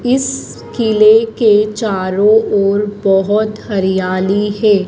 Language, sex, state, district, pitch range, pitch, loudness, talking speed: Hindi, female, Madhya Pradesh, Dhar, 195-220 Hz, 210 Hz, -13 LUFS, 100 wpm